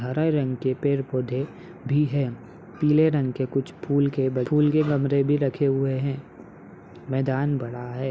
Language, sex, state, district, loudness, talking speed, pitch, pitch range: Hindi, male, Uttar Pradesh, Hamirpur, -24 LUFS, 170 wpm, 135 Hz, 130-145 Hz